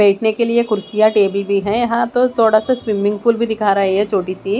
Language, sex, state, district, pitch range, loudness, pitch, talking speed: Hindi, female, Maharashtra, Mumbai Suburban, 200-235 Hz, -16 LUFS, 215 Hz, 260 wpm